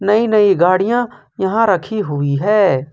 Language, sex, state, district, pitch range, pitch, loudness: Hindi, male, Jharkhand, Ranchi, 175-215 Hz, 200 Hz, -15 LUFS